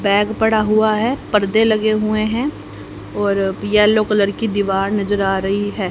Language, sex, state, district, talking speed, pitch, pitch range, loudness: Hindi, female, Haryana, Jhajjar, 170 wpm, 210 Hz, 200-215 Hz, -17 LUFS